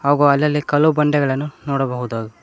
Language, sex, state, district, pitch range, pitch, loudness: Kannada, male, Karnataka, Koppal, 130-150 Hz, 145 Hz, -18 LUFS